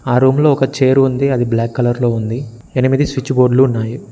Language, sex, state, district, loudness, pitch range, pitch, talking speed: Telugu, male, Telangana, Mahabubabad, -14 LUFS, 120-135 Hz, 130 Hz, 220 wpm